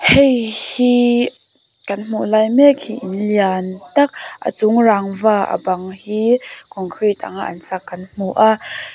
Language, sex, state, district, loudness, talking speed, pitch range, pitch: Mizo, female, Mizoram, Aizawl, -17 LUFS, 155 wpm, 190-235 Hz, 215 Hz